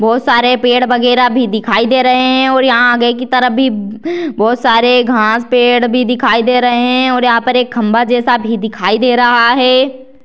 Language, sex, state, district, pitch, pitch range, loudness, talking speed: Hindi, female, Bihar, Purnia, 245 Hz, 235-255 Hz, -11 LUFS, 205 wpm